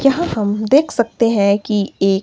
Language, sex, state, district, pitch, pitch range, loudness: Hindi, female, Himachal Pradesh, Shimla, 215 Hz, 200-275 Hz, -16 LUFS